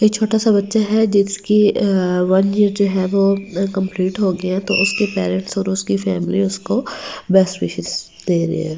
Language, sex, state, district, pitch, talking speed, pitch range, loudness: Hindi, female, Delhi, New Delhi, 190 Hz, 190 wpm, 165-200 Hz, -17 LUFS